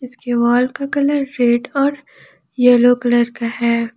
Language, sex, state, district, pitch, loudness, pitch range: Hindi, female, Jharkhand, Ranchi, 245 Hz, -16 LUFS, 240-275 Hz